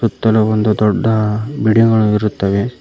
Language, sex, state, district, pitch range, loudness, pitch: Kannada, male, Karnataka, Koppal, 105-115 Hz, -14 LUFS, 110 Hz